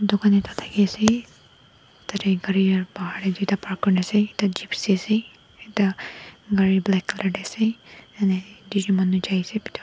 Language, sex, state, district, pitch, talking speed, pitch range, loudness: Nagamese, female, Nagaland, Dimapur, 200 Hz, 170 wpm, 190-210 Hz, -23 LUFS